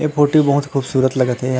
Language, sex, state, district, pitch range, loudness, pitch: Chhattisgarhi, male, Chhattisgarh, Rajnandgaon, 130-145 Hz, -16 LUFS, 135 Hz